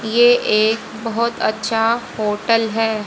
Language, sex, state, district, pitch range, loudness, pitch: Hindi, female, Haryana, Jhajjar, 220-230 Hz, -17 LUFS, 225 Hz